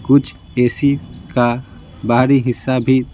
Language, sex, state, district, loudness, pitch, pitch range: Hindi, male, Bihar, Patna, -17 LUFS, 125 Hz, 120-130 Hz